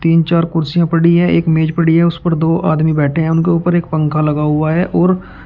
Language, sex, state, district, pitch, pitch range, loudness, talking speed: Hindi, male, Uttar Pradesh, Shamli, 165 Hz, 160-170 Hz, -13 LUFS, 250 wpm